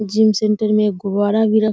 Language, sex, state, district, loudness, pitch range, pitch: Hindi, female, Bihar, Samastipur, -16 LUFS, 210-215 Hz, 215 Hz